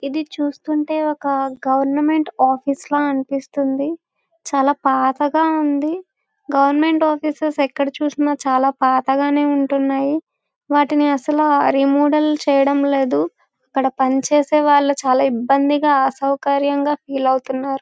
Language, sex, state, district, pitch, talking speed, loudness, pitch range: Telugu, female, Andhra Pradesh, Visakhapatnam, 280 Hz, 100 wpm, -18 LUFS, 270-295 Hz